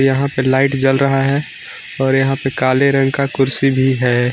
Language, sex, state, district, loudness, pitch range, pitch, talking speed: Hindi, male, Jharkhand, Garhwa, -15 LUFS, 130-135 Hz, 135 Hz, 210 wpm